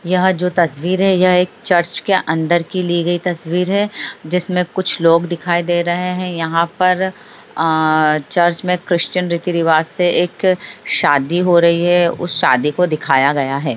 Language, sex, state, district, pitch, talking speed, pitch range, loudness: Hindi, female, Bihar, Sitamarhi, 175 Hz, 170 wpm, 165-180 Hz, -15 LUFS